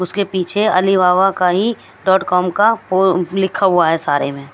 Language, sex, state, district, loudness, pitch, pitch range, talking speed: Hindi, female, Maharashtra, Gondia, -15 LUFS, 185 Hz, 180-195 Hz, 185 wpm